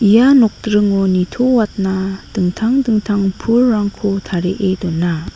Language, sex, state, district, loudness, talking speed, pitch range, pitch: Garo, female, Meghalaya, North Garo Hills, -15 LUFS, 90 wpm, 190-225 Hz, 200 Hz